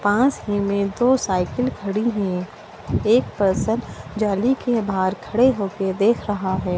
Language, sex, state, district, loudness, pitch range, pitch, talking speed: Bhojpuri, female, Bihar, Saran, -21 LUFS, 190-235 Hz, 205 Hz, 160 wpm